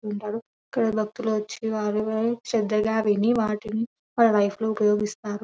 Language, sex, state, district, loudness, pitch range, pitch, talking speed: Telugu, female, Telangana, Nalgonda, -25 LUFS, 210-225 Hz, 215 Hz, 130 wpm